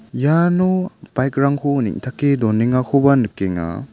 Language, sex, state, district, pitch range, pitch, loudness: Garo, male, Meghalaya, South Garo Hills, 115-145 Hz, 135 Hz, -18 LUFS